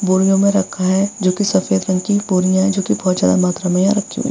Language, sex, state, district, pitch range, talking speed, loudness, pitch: Hindi, female, Bihar, Vaishali, 185-200 Hz, 280 wpm, -16 LUFS, 190 Hz